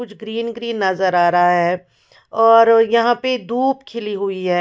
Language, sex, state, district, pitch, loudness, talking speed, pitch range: Hindi, female, Odisha, Khordha, 225 Hz, -16 LUFS, 180 wpm, 185-235 Hz